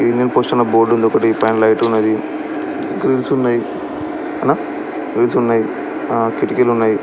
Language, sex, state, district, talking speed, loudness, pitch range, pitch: Telugu, male, Andhra Pradesh, Srikakulam, 110 wpm, -16 LUFS, 110-120 Hz, 115 Hz